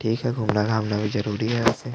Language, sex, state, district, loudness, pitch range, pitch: Hindi, male, Chhattisgarh, Jashpur, -24 LUFS, 105-115 Hz, 110 Hz